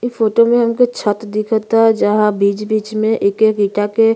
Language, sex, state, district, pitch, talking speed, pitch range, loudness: Bhojpuri, female, Uttar Pradesh, Gorakhpur, 215 Hz, 185 wpm, 210-225 Hz, -15 LUFS